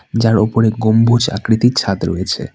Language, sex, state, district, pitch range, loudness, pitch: Bengali, male, West Bengal, Alipurduar, 100-115 Hz, -14 LUFS, 110 Hz